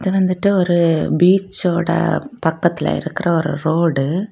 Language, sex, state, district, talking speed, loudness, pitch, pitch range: Tamil, female, Tamil Nadu, Kanyakumari, 110 wpm, -17 LUFS, 175 Hz, 165-190 Hz